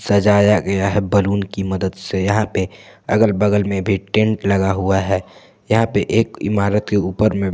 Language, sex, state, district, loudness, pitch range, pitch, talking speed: Hindi, male, Jharkhand, Palamu, -17 LUFS, 95-105 Hz, 100 Hz, 185 wpm